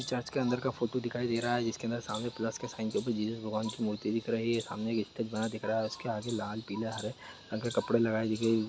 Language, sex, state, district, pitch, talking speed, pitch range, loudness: Hindi, male, Jharkhand, Jamtara, 115 Hz, 295 wpm, 110-120 Hz, -34 LUFS